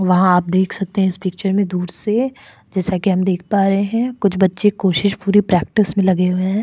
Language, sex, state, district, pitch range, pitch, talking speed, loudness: Hindi, female, Goa, North and South Goa, 185-200 Hz, 190 Hz, 235 wpm, -17 LUFS